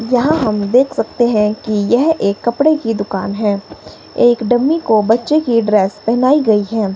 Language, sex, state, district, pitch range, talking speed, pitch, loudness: Hindi, female, Himachal Pradesh, Shimla, 210-250 Hz, 180 wpm, 225 Hz, -14 LUFS